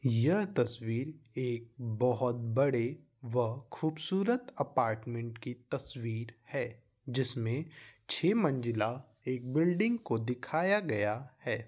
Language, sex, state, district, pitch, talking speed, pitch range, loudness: Hindi, male, Bihar, Vaishali, 125 Hz, 105 wpm, 115-150 Hz, -33 LUFS